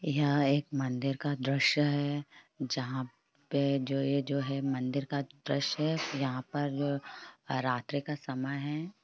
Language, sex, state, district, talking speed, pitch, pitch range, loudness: Hindi, female, Jharkhand, Jamtara, 145 wpm, 140 Hz, 135-145 Hz, -32 LUFS